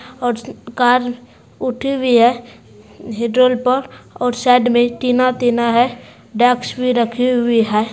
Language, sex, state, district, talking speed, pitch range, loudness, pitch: Hindi, female, Bihar, Supaul, 150 wpm, 235-250 Hz, -16 LUFS, 245 Hz